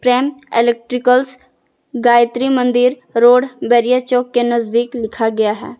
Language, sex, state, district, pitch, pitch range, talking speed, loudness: Hindi, female, Jharkhand, Garhwa, 245 Hz, 235-250 Hz, 125 wpm, -14 LUFS